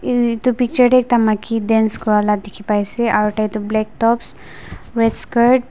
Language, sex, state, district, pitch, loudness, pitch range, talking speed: Nagamese, female, Nagaland, Dimapur, 225 Hz, -17 LUFS, 215-240 Hz, 190 wpm